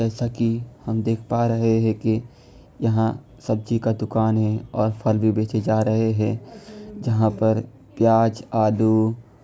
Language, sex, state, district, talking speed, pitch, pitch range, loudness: Hindi, male, Bihar, Kishanganj, 150 wpm, 110 Hz, 110-120 Hz, -22 LUFS